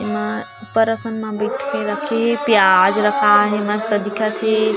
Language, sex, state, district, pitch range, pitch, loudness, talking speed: Chhattisgarhi, female, Chhattisgarh, Jashpur, 210-220 Hz, 215 Hz, -17 LUFS, 165 wpm